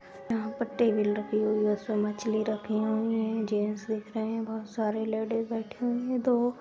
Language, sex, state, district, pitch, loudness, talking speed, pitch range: Hindi, female, Chhattisgarh, Kabirdham, 220 Hz, -30 LUFS, 200 wpm, 215-225 Hz